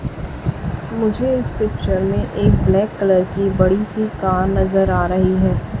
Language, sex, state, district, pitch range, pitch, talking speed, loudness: Hindi, female, Chhattisgarh, Raipur, 185-210 Hz, 195 Hz, 155 wpm, -18 LUFS